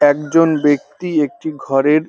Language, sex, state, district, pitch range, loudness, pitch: Bengali, male, West Bengal, North 24 Parganas, 145-160 Hz, -16 LUFS, 150 Hz